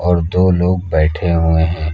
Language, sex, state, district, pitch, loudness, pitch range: Hindi, male, Uttar Pradesh, Lucknow, 85 Hz, -15 LUFS, 80-90 Hz